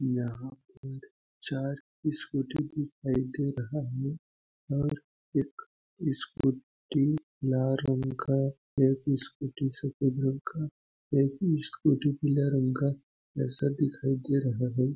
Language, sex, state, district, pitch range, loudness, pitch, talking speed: Hindi, male, Chhattisgarh, Balrampur, 130-145 Hz, -30 LUFS, 135 Hz, 120 wpm